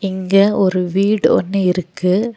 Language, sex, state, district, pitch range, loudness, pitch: Tamil, female, Tamil Nadu, Nilgiris, 185-200 Hz, -16 LUFS, 195 Hz